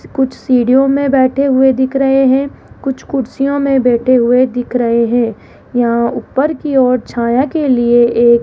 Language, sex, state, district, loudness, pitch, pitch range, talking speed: Hindi, female, Rajasthan, Jaipur, -13 LUFS, 260 Hz, 240-270 Hz, 170 wpm